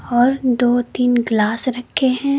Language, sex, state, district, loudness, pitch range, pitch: Hindi, female, Uttar Pradesh, Lucknow, -17 LUFS, 240-255 Hz, 245 Hz